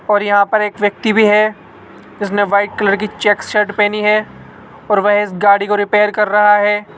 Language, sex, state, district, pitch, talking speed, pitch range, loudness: Hindi, male, Rajasthan, Jaipur, 210 Hz, 205 wpm, 205-210 Hz, -13 LUFS